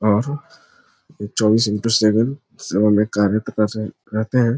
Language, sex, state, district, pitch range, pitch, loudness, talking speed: Hindi, male, Bihar, Araria, 105-115 Hz, 110 Hz, -19 LUFS, 130 wpm